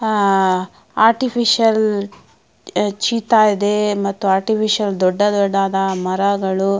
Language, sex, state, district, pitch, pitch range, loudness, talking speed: Kannada, female, Karnataka, Mysore, 205 Hz, 195-215 Hz, -16 LUFS, 80 wpm